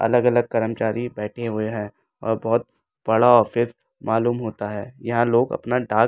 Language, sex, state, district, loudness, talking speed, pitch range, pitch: Hindi, male, Delhi, New Delhi, -22 LUFS, 170 wpm, 110-120 Hz, 115 Hz